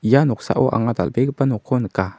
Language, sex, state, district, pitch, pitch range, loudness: Garo, male, Meghalaya, South Garo Hills, 125 Hz, 110-135 Hz, -19 LUFS